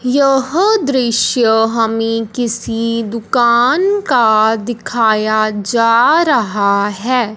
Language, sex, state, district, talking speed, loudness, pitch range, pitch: Hindi, male, Punjab, Fazilka, 80 wpm, -13 LUFS, 220-255 Hz, 230 Hz